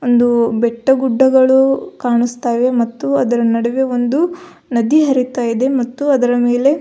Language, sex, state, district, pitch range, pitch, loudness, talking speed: Kannada, female, Karnataka, Belgaum, 240-270 Hz, 250 Hz, -15 LUFS, 130 wpm